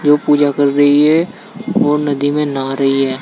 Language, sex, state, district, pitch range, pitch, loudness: Hindi, male, Uttar Pradesh, Saharanpur, 140-150 Hz, 145 Hz, -13 LUFS